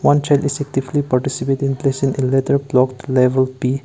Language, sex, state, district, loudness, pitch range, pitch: English, male, Nagaland, Kohima, -17 LUFS, 130-140 Hz, 135 Hz